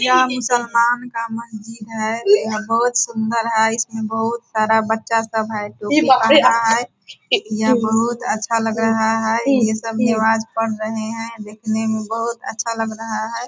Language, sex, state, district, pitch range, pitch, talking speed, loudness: Hindi, female, Bihar, Purnia, 220-235 Hz, 225 Hz, 170 wpm, -18 LUFS